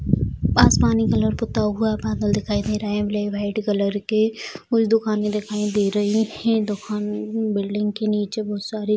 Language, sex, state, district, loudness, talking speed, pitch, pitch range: Hindi, female, Bihar, Bhagalpur, -22 LUFS, 195 wpm, 210 Hz, 205-215 Hz